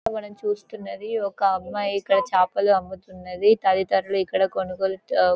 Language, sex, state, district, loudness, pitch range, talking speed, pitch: Telugu, female, Telangana, Karimnagar, -23 LUFS, 190-200 Hz, 145 wpm, 195 Hz